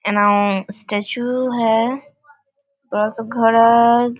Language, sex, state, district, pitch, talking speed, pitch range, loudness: Hindi, female, Bihar, Vaishali, 230 Hz, 85 wpm, 210-255 Hz, -17 LUFS